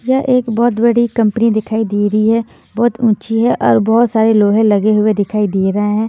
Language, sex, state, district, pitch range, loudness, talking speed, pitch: Hindi, female, Haryana, Jhajjar, 210-235 Hz, -13 LUFS, 215 wpm, 220 Hz